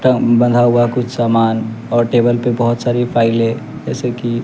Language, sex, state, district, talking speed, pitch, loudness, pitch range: Hindi, male, Bihar, West Champaran, 160 wpm, 120 Hz, -15 LUFS, 115-120 Hz